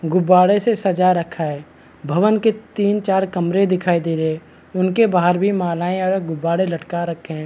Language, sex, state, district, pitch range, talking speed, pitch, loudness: Hindi, male, Bihar, Madhepura, 170-195 Hz, 185 wpm, 180 Hz, -18 LUFS